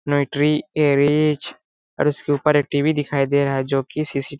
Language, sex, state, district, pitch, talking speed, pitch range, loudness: Hindi, male, Chhattisgarh, Balrampur, 145 Hz, 205 wpm, 140-150 Hz, -19 LUFS